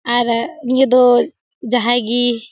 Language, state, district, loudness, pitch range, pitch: Surjapuri, Bihar, Kishanganj, -15 LUFS, 240-255 Hz, 245 Hz